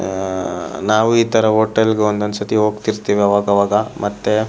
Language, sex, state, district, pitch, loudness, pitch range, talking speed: Kannada, male, Karnataka, Shimoga, 105 Hz, -16 LUFS, 100-110 Hz, 160 wpm